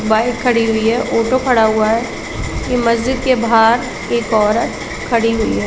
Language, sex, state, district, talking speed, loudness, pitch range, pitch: Hindi, female, Chhattisgarh, Bilaspur, 190 wpm, -15 LUFS, 220-245 Hz, 230 Hz